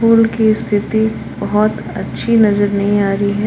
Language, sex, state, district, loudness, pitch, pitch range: Hindi, female, Jharkhand, Palamu, -15 LUFS, 215 Hz, 205-220 Hz